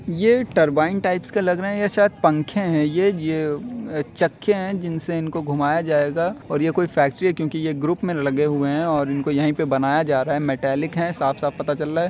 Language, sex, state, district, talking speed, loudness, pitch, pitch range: Hindi, male, Uttar Pradesh, Etah, 235 wpm, -21 LUFS, 160 Hz, 145-180 Hz